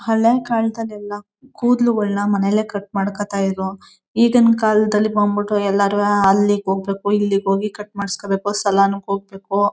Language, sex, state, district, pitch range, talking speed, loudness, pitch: Kannada, female, Karnataka, Mysore, 200-215 Hz, 135 wpm, -18 LUFS, 205 Hz